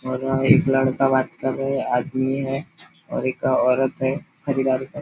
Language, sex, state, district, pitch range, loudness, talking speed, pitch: Hindi, male, Maharashtra, Nagpur, 130-135 Hz, -21 LUFS, 180 wpm, 135 Hz